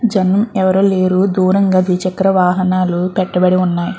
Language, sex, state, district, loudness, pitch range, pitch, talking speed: Telugu, female, Andhra Pradesh, Guntur, -14 LUFS, 185-190 Hz, 185 Hz, 135 wpm